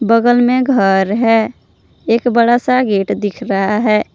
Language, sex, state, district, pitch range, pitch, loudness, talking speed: Hindi, female, Jharkhand, Palamu, 210-245 Hz, 230 Hz, -13 LUFS, 175 wpm